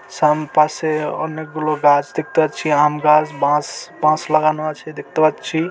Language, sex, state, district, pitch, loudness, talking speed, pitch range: Bengali, male, West Bengal, Dakshin Dinajpur, 155 Hz, -17 LUFS, 135 wpm, 150-155 Hz